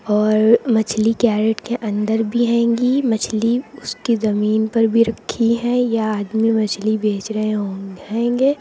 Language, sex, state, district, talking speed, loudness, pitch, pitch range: Hindi, female, Uttar Pradesh, Lucknow, 145 wpm, -18 LUFS, 225 Hz, 215-235 Hz